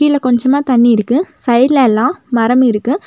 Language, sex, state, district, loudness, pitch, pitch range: Tamil, female, Tamil Nadu, Nilgiris, -12 LUFS, 250 Hz, 240-285 Hz